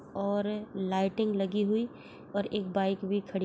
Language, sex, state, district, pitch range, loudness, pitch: Hindi, female, Chhattisgarh, Korba, 195-210 Hz, -31 LUFS, 200 Hz